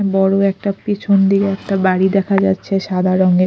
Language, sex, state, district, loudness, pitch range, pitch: Bengali, female, Odisha, Khordha, -15 LUFS, 190-195 Hz, 195 Hz